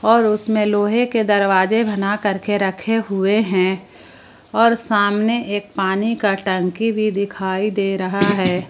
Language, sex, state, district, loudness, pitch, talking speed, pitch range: Hindi, female, Jharkhand, Palamu, -18 LUFS, 205 Hz, 130 wpm, 195-220 Hz